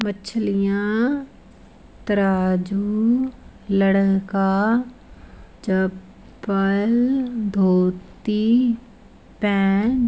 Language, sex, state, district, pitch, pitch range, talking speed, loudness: Hindi, female, Bihar, Sitamarhi, 205 Hz, 195-230 Hz, 40 wpm, -21 LUFS